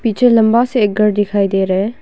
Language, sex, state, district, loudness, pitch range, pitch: Hindi, female, Arunachal Pradesh, Longding, -13 LUFS, 200-230 Hz, 210 Hz